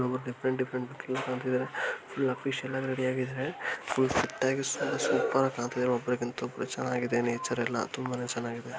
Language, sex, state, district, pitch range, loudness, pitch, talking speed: Kannada, male, Karnataka, Gulbarga, 120-130 Hz, -31 LUFS, 125 Hz, 175 wpm